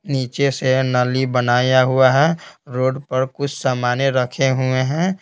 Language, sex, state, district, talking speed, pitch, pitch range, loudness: Hindi, male, Bihar, Patna, 150 wpm, 130 Hz, 130-135 Hz, -18 LUFS